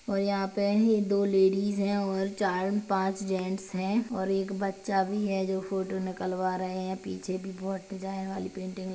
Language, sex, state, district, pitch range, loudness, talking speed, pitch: Hindi, male, Chhattisgarh, Kabirdham, 190-200 Hz, -30 LUFS, 190 wpm, 195 Hz